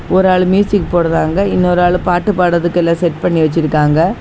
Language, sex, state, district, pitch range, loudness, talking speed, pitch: Tamil, female, Tamil Nadu, Kanyakumari, 165-185 Hz, -13 LUFS, 170 wpm, 175 Hz